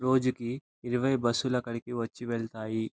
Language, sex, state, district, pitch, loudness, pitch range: Telugu, male, Andhra Pradesh, Anantapur, 120 Hz, -31 LUFS, 115-130 Hz